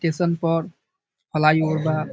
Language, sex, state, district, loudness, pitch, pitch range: Bhojpuri, male, Bihar, Saran, -21 LUFS, 160 Hz, 155-165 Hz